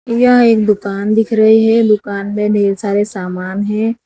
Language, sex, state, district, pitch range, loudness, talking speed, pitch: Hindi, female, Gujarat, Valsad, 200-225 Hz, -13 LUFS, 175 wpm, 210 Hz